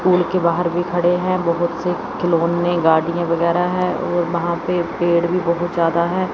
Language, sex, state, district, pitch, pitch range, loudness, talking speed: Hindi, female, Chandigarh, Chandigarh, 175 Hz, 170-180 Hz, -18 LUFS, 190 wpm